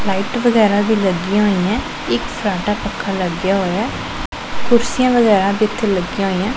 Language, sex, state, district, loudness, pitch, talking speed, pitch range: Punjabi, female, Punjab, Pathankot, -17 LUFS, 205 Hz, 145 wpm, 195-220 Hz